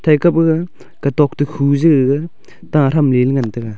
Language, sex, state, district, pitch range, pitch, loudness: Wancho, male, Arunachal Pradesh, Longding, 135-160 Hz, 145 Hz, -15 LUFS